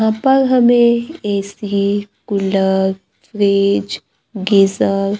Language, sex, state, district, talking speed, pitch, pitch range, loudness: Hindi, female, Maharashtra, Gondia, 90 wpm, 200 Hz, 195-220 Hz, -15 LUFS